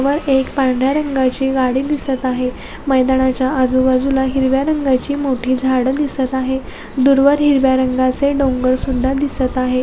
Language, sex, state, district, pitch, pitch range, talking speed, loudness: Marathi, female, Maharashtra, Sindhudurg, 265 Hz, 255-275 Hz, 135 wpm, -16 LUFS